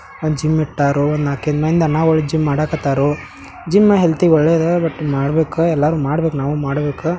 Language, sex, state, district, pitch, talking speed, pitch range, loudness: Kannada, male, Karnataka, Belgaum, 155 Hz, 150 wpm, 145-165 Hz, -16 LUFS